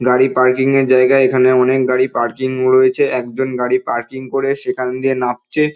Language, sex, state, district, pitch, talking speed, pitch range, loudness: Bengali, male, West Bengal, North 24 Parganas, 130 Hz, 165 wpm, 125-135 Hz, -15 LUFS